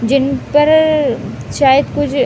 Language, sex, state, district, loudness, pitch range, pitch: Hindi, female, Uttar Pradesh, Deoria, -13 LUFS, 275-300 Hz, 285 Hz